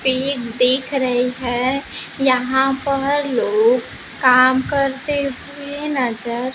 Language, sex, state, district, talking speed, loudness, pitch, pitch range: Hindi, female, Maharashtra, Gondia, 100 wpm, -18 LUFS, 265 Hz, 255-280 Hz